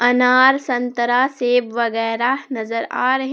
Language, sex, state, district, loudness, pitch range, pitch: Hindi, female, Jharkhand, Palamu, -18 LUFS, 235-260 Hz, 245 Hz